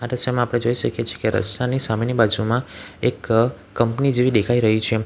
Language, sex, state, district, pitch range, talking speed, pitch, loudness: Gujarati, male, Gujarat, Valsad, 110-125 Hz, 175 wpm, 120 Hz, -20 LUFS